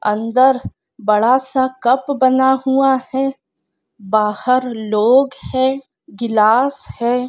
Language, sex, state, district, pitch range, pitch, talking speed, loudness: Hindi, female, Andhra Pradesh, Krishna, 225-265 Hz, 255 Hz, 100 wpm, -16 LUFS